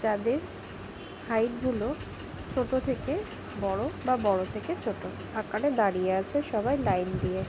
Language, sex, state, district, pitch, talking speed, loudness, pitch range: Bengali, female, West Bengal, Jhargram, 225 Hz, 135 wpm, -30 LUFS, 200-255 Hz